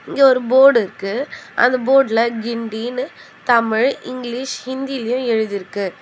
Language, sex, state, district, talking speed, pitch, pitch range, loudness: Tamil, female, Tamil Nadu, Chennai, 110 wpm, 245 Hz, 225-260 Hz, -18 LUFS